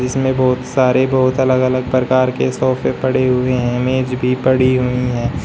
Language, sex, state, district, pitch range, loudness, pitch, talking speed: Hindi, male, Uttar Pradesh, Shamli, 125-130 Hz, -15 LUFS, 130 Hz, 185 wpm